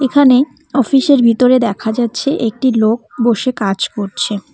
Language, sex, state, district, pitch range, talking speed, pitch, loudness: Bengali, female, West Bengal, Cooch Behar, 220-265 Hz, 145 wpm, 240 Hz, -14 LUFS